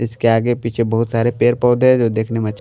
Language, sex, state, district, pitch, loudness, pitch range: Hindi, male, Bihar, Patna, 115 Hz, -16 LUFS, 115-120 Hz